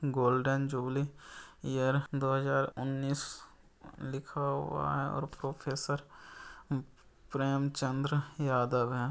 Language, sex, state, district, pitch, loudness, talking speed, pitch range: Hindi, male, Bihar, Saran, 135 Hz, -34 LUFS, 90 wpm, 130-140 Hz